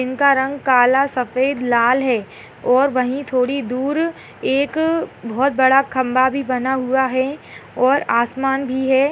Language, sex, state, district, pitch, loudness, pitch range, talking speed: Hindi, female, Bihar, Saharsa, 265 Hz, -18 LUFS, 255-275 Hz, 145 wpm